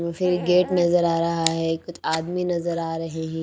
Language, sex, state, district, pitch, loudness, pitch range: Hindi, female, Haryana, Rohtak, 170 Hz, -23 LUFS, 165-175 Hz